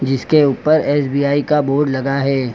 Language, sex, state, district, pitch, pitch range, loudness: Hindi, male, Uttar Pradesh, Lucknow, 140 Hz, 135-145 Hz, -16 LUFS